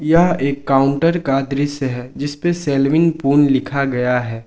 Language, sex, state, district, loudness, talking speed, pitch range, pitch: Hindi, male, Jharkhand, Ranchi, -17 LUFS, 175 wpm, 135-155 Hz, 140 Hz